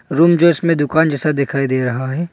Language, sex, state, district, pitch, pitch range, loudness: Hindi, male, Arunachal Pradesh, Longding, 150 Hz, 135-170 Hz, -15 LUFS